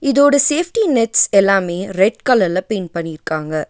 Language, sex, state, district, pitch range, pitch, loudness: Tamil, female, Tamil Nadu, Nilgiris, 175-275 Hz, 195 Hz, -15 LUFS